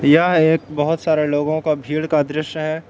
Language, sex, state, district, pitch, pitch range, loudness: Hindi, male, Jharkhand, Palamu, 155 Hz, 150-160 Hz, -18 LUFS